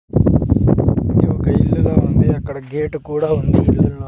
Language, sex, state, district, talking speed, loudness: Telugu, male, Andhra Pradesh, Sri Satya Sai, 130 wpm, -16 LUFS